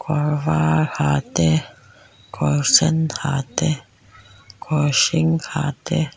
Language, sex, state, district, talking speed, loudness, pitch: Mizo, female, Mizoram, Aizawl, 115 wpm, -19 LUFS, 135 Hz